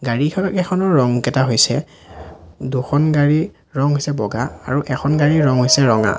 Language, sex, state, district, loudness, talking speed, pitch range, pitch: Assamese, male, Assam, Sonitpur, -17 LUFS, 145 wpm, 120-150 Hz, 140 Hz